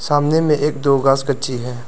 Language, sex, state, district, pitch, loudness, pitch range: Hindi, male, Arunachal Pradesh, Lower Dibang Valley, 140 Hz, -17 LUFS, 130-145 Hz